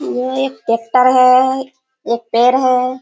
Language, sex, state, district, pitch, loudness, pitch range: Hindi, female, Bihar, Kishanganj, 255 Hz, -14 LUFS, 250-260 Hz